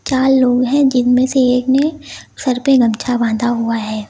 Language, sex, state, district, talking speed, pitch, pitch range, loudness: Hindi, female, Uttar Pradesh, Lucknow, 190 wpm, 250 Hz, 240-265 Hz, -14 LUFS